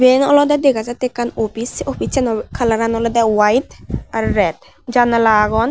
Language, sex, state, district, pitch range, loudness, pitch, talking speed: Chakma, female, Tripura, Unakoti, 225-255 Hz, -16 LUFS, 235 Hz, 155 wpm